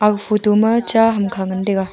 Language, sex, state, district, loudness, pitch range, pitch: Wancho, female, Arunachal Pradesh, Longding, -16 LUFS, 195-225 Hz, 210 Hz